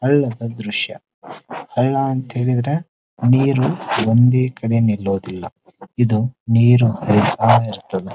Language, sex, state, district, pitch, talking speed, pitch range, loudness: Kannada, male, Karnataka, Dharwad, 120 Hz, 105 wpm, 110-130 Hz, -17 LUFS